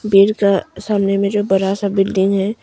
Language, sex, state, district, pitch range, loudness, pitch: Hindi, female, Arunachal Pradesh, Longding, 195-205 Hz, -16 LUFS, 195 Hz